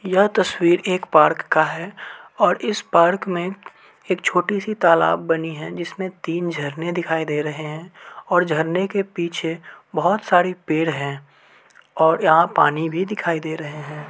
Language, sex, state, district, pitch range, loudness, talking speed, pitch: Hindi, male, Uttar Pradesh, Varanasi, 160-185 Hz, -20 LUFS, 160 wpm, 170 Hz